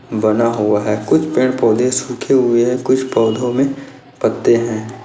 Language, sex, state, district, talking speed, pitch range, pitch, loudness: Hindi, male, Maharashtra, Nagpur, 165 wpm, 110-130 Hz, 120 Hz, -15 LUFS